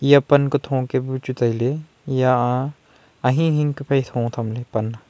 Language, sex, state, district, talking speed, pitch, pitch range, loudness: Wancho, male, Arunachal Pradesh, Longding, 235 wpm, 130 Hz, 120-140 Hz, -21 LUFS